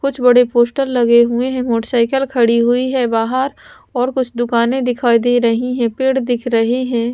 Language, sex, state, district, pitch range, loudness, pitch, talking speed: Hindi, female, Punjab, Pathankot, 235-255 Hz, -15 LUFS, 245 Hz, 185 wpm